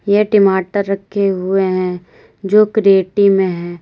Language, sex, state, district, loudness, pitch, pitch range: Hindi, female, Uttar Pradesh, Lalitpur, -14 LUFS, 195 Hz, 185-200 Hz